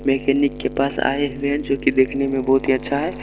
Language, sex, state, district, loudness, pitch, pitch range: Maithili, male, Bihar, Supaul, -20 LUFS, 135 Hz, 135-140 Hz